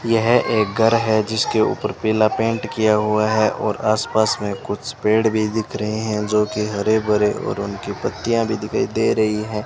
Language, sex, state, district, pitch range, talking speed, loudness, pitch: Hindi, male, Rajasthan, Bikaner, 105-110 Hz, 200 wpm, -19 LUFS, 110 Hz